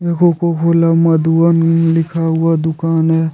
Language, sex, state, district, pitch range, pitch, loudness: Hindi, male, Jharkhand, Deoghar, 160-165 Hz, 165 Hz, -13 LUFS